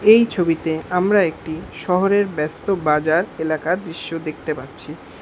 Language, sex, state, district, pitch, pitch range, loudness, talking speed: Bengali, male, West Bengal, Alipurduar, 165 Hz, 155-185 Hz, -20 LUFS, 125 wpm